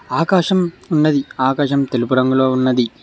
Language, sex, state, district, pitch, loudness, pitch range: Telugu, male, Telangana, Mahabubabad, 135 Hz, -16 LUFS, 130-155 Hz